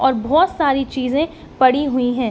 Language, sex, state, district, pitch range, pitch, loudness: Hindi, female, Jharkhand, Sahebganj, 255-290 Hz, 265 Hz, -17 LUFS